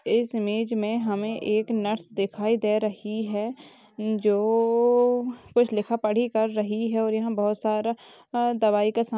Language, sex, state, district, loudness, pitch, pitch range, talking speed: Hindi, female, Chhattisgarh, Rajnandgaon, -25 LUFS, 220 Hz, 210-230 Hz, 155 wpm